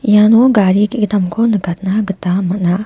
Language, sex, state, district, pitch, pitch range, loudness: Garo, female, Meghalaya, West Garo Hills, 205 Hz, 190-215 Hz, -13 LUFS